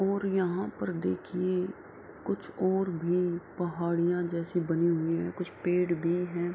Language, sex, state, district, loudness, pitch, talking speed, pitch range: Hindi, female, Bihar, Kishanganj, -30 LUFS, 175 Hz, 165 wpm, 170-180 Hz